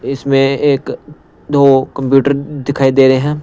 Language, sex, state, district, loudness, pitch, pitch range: Hindi, male, Punjab, Pathankot, -12 LUFS, 135 Hz, 135-140 Hz